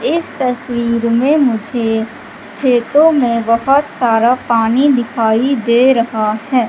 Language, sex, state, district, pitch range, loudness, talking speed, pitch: Hindi, female, Madhya Pradesh, Katni, 230-265 Hz, -13 LUFS, 115 wpm, 240 Hz